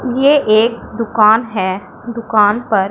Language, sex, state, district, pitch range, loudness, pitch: Hindi, female, Punjab, Pathankot, 210-235 Hz, -13 LUFS, 225 Hz